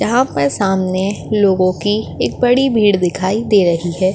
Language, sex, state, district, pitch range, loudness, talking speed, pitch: Hindi, female, Maharashtra, Chandrapur, 185-215 Hz, -15 LUFS, 175 wpm, 195 Hz